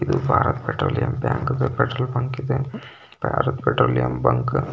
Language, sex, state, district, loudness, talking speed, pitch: Kannada, male, Karnataka, Belgaum, -22 LUFS, 140 wpm, 125 Hz